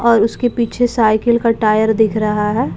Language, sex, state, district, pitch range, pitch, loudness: Hindi, female, Bihar, Katihar, 215-235 Hz, 225 Hz, -15 LUFS